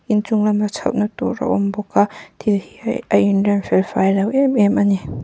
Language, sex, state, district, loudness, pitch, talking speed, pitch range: Mizo, female, Mizoram, Aizawl, -18 LUFS, 210 Hz, 230 wpm, 200-215 Hz